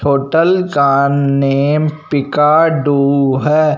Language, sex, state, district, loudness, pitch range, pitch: Hindi, male, Punjab, Fazilka, -13 LUFS, 140-155 Hz, 145 Hz